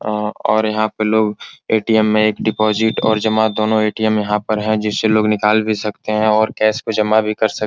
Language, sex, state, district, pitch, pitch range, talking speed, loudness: Hindi, male, Bihar, Supaul, 110 Hz, 105-110 Hz, 225 wpm, -16 LUFS